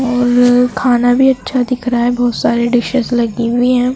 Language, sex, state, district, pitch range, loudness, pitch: Hindi, female, Madhya Pradesh, Dhar, 240-250 Hz, -13 LUFS, 245 Hz